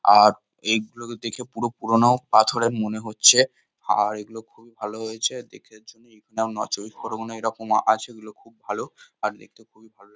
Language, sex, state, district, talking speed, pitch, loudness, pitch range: Bengali, male, West Bengal, North 24 Parganas, 155 wpm, 110 Hz, -22 LUFS, 110-115 Hz